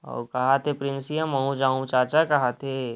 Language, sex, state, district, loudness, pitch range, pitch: Chhattisgarhi, male, Chhattisgarh, Rajnandgaon, -24 LUFS, 130-145 Hz, 135 Hz